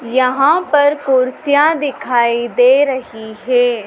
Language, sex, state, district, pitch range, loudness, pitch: Hindi, female, Madhya Pradesh, Dhar, 245-285 Hz, -14 LUFS, 260 Hz